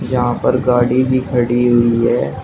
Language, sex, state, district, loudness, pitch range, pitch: Hindi, male, Uttar Pradesh, Shamli, -14 LUFS, 120-125 Hz, 120 Hz